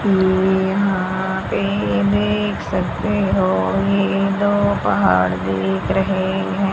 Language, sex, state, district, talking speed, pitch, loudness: Hindi, female, Haryana, Rohtak, 105 wpm, 185 Hz, -18 LUFS